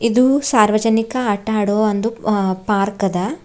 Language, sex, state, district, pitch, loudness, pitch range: Kannada, female, Karnataka, Bidar, 215 Hz, -17 LUFS, 205-225 Hz